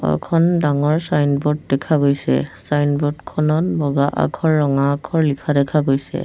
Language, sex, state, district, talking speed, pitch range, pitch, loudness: Assamese, female, Assam, Sonitpur, 135 wpm, 140-155 Hz, 145 Hz, -18 LUFS